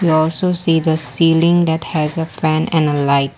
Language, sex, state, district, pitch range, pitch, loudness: English, female, Assam, Kamrup Metropolitan, 155-165 Hz, 160 Hz, -15 LUFS